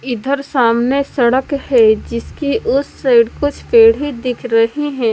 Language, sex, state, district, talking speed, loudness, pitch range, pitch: Hindi, female, Punjab, Kapurthala, 150 wpm, -14 LUFS, 240-290 Hz, 270 Hz